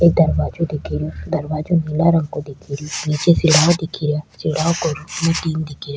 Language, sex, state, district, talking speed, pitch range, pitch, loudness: Rajasthani, female, Rajasthan, Churu, 110 wpm, 150-165 Hz, 155 Hz, -19 LUFS